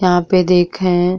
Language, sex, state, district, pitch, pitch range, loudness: Bhojpuri, female, Uttar Pradesh, Deoria, 180 Hz, 175-185 Hz, -14 LUFS